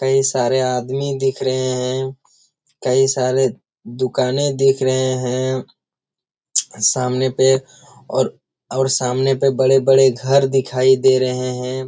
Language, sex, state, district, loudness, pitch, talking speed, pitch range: Hindi, male, Bihar, Jamui, -17 LUFS, 130 Hz, 120 wpm, 130-135 Hz